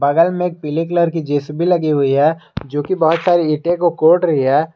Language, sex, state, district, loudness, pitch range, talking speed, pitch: Hindi, male, Jharkhand, Garhwa, -16 LUFS, 150-175 Hz, 225 wpm, 165 Hz